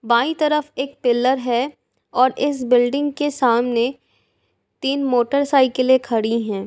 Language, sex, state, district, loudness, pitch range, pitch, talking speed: Hindi, female, Uttar Pradesh, Jalaun, -19 LUFS, 240-280 Hz, 255 Hz, 125 wpm